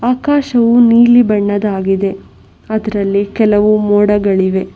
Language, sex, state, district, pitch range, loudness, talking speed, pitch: Kannada, female, Karnataka, Bangalore, 200-235 Hz, -12 LUFS, 75 wpm, 210 Hz